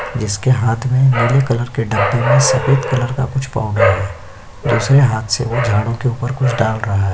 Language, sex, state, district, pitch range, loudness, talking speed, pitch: Hindi, male, Uttar Pradesh, Jyotiba Phule Nagar, 110-130 Hz, -15 LUFS, 210 wpm, 120 Hz